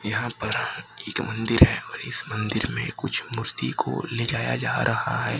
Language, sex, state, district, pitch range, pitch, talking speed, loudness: Hindi, male, Maharashtra, Gondia, 105-120 Hz, 115 Hz, 190 wpm, -25 LUFS